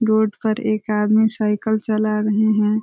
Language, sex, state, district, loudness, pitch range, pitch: Hindi, female, Uttar Pradesh, Ghazipur, -19 LUFS, 215-220 Hz, 215 Hz